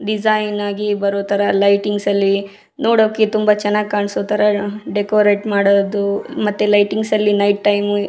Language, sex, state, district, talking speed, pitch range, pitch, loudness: Kannada, female, Karnataka, Raichur, 135 wpm, 200-210 Hz, 205 Hz, -16 LUFS